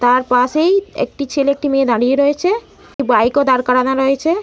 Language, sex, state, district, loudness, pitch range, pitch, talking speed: Bengali, female, West Bengal, Malda, -15 LUFS, 255-295 Hz, 275 Hz, 175 wpm